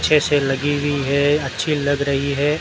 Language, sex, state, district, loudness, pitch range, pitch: Hindi, male, Rajasthan, Bikaner, -19 LUFS, 140-145 Hz, 145 Hz